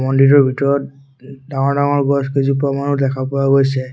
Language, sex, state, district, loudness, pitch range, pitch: Assamese, male, Assam, Sonitpur, -16 LUFS, 135-140 Hz, 135 Hz